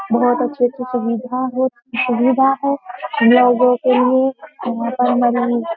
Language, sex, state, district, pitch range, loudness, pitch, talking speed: Hindi, female, Uttar Pradesh, Jyotiba Phule Nagar, 245-255 Hz, -16 LUFS, 250 Hz, 145 wpm